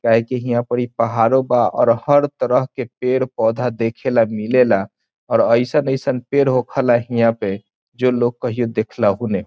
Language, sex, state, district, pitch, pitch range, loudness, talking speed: Bhojpuri, male, Bihar, Saran, 120 Hz, 115-130 Hz, -18 LUFS, 165 wpm